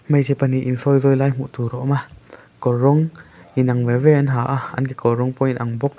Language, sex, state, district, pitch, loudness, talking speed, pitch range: Mizo, male, Mizoram, Aizawl, 135 Hz, -19 LUFS, 250 wpm, 125-140 Hz